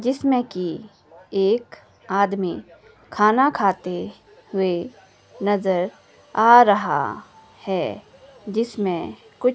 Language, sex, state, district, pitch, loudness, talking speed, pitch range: Hindi, female, Himachal Pradesh, Shimla, 200 Hz, -21 LUFS, 80 wpm, 185-235 Hz